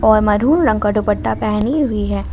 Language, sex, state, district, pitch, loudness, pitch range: Hindi, female, Jharkhand, Ranchi, 215 Hz, -16 LUFS, 210-240 Hz